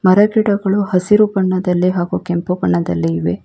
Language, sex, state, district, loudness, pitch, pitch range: Kannada, female, Karnataka, Bangalore, -15 LUFS, 185 Hz, 135-200 Hz